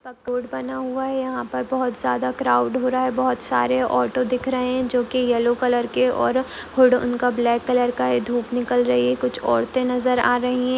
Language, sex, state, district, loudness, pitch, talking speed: Hindi, female, Maharashtra, Pune, -21 LUFS, 245 Hz, 210 wpm